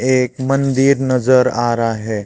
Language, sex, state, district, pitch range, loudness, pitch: Hindi, male, Chhattisgarh, Raipur, 120-130 Hz, -15 LUFS, 130 Hz